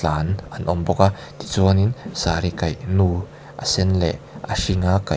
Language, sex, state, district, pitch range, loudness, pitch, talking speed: Mizo, male, Mizoram, Aizawl, 85-95 Hz, -21 LUFS, 90 Hz, 195 wpm